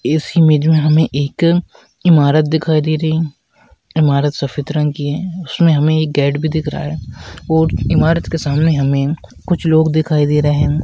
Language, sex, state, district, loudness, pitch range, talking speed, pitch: Hindi, female, Rajasthan, Nagaur, -15 LUFS, 145-160 Hz, 190 wpm, 155 Hz